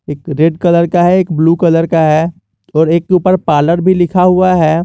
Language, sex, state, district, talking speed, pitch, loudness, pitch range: Hindi, male, Jharkhand, Garhwa, 235 wpm, 170 Hz, -11 LUFS, 160-180 Hz